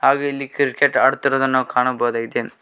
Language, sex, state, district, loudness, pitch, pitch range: Kannada, male, Karnataka, Koppal, -19 LUFS, 135 Hz, 125-140 Hz